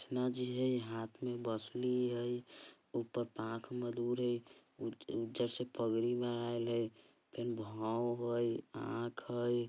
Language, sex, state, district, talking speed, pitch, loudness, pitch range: Bajjika, male, Bihar, Vaishali, 135 wpm, 120 Hz, -39 LUFS, 115-120 Hz